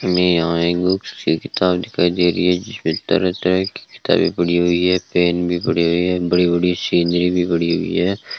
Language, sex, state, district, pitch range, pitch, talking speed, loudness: Hindi, male, Rajasthan, Bikaner, 85-90 Hz, 90 Hz, 200 wpm, -18 LUFS